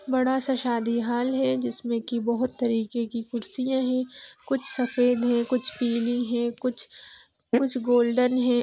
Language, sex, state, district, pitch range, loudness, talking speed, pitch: Hindi, female, Bihar, Vaishali, 235-255 Hz, -26 LUFS, 155 wpm, 245 Hz